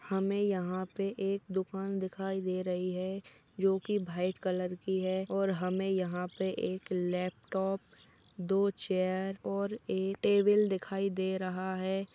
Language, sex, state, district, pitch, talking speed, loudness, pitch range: Hindi, female, Uttar Pradesh, Etah, 190 Hz, 150 wpm, -33 LUFS, 185-195 Hz